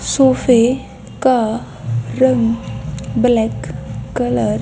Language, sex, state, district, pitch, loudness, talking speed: Hindi, female, Haryana, Jhajjar, 185 Hz, -17 LUFS, 80 wpm